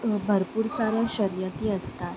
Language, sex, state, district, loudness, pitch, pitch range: Marathi, female, Maharashtra, Sindhudurg, -27 LUFS, 215 Hz, 195-225 Hz